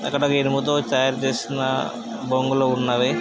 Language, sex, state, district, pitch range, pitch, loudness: Telugu, male, Andhra Pradesh, Krishna, 130-135 Hz, 130 Hz, -22 LUFS